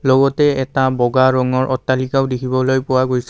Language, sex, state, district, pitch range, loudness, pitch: Assamese, male, Assam, Kamrup Metropolitan, 130-135 Hz, -16 LUFS, 130 Hz